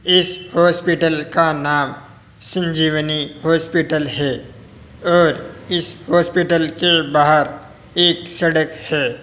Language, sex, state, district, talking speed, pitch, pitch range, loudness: Hindi, male, Rajasthan, Jaipur, 95 wpm, 165 Hz, 150-170 Hz, -17 LUFS